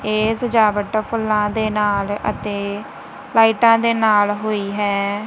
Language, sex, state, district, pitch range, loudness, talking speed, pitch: Punjabi, female, Punjab, Kapurthala, 205-220 Hz, -18 LUFS, 125 wpm, 215 Hz